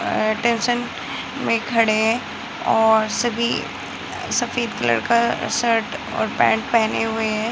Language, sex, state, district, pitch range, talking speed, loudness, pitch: Hindi, female, Bihar, Muzaffarpur, 220-240 Hz, 120 wpm, -20 LUFS, 230 Hz